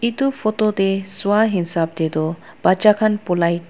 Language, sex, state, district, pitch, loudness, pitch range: Nagamese, female, Nagaland, Dimapur, 195 Hz, -18 LUFS, 170-215 Hz